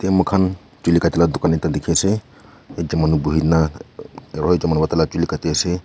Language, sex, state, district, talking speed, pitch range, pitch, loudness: Nagamese, male, Nagaland, Kohima, 215 wpm, 80-90 Hz, 85 Hz, -19 LUFS